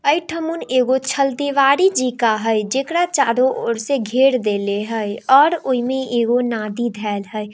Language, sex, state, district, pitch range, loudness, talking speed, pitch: Hindi, female, Bihar, Darbhanga, 225-275 Hz, -18 LUFS, 165 wpm, 255 Hz